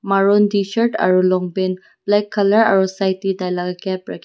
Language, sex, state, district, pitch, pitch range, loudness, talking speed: Nagamese, female, Nagaland, Dimapur, 195 Hz, 185-205 Hz, -17 LUFS, 185 wpm